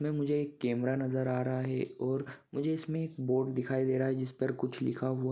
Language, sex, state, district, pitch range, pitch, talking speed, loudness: Hindi, male, Maharashtra, Sindhudurg, 130-140 Hz, 130 Hz, 235 wpm, -33 LUFS